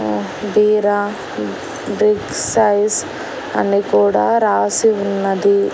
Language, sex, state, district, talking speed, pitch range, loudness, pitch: Telugu, female, Andhra Pradesh, Annamaya, 85 wpm, 195-210 Hz, -16 LUFS, 205 Hz